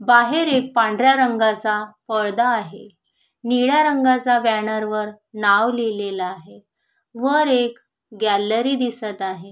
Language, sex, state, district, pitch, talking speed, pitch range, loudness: Marathi, female, Maharashtra, Sindhudurg, 230 Hz, 115 wpm, 210-255 Hz, -19 LUFS